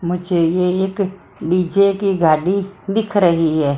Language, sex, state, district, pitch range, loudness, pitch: Hindi, female, Maharashtra, Mumbai Suburban, 170-195 Hz, -17 LUFS, 180 Hz